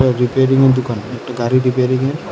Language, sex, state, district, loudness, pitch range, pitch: Bengali, male, Tripura, West Tripura, -15 LUFS, 125-130 Hz, 130 Hz